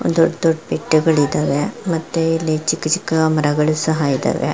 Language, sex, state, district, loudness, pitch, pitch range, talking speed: Kannada, female, Karnataka, Chamarajanagar, -18 LUFS, 160 Hz, 155-165 Hz, 130 wpm